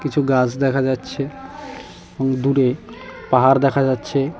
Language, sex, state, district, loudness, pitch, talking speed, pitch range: Bengali, male, West Bengal, Cooch Behar, -18 LUFS, 135 Hz, 120 wpm, 130-145 Hz